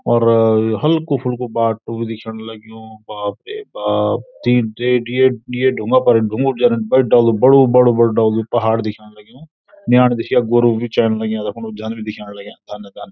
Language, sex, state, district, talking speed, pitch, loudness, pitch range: Garhwali, male, Uttarakhand, Uttarkashi, 190 wpm, 115 Hz, -16 LUFS, 110-125 Hz